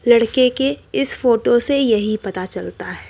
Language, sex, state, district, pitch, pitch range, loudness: Hindi, male, Uttar Pradesh, Lucknow, 235 Hz, 210-255 Hz, -18 LUFS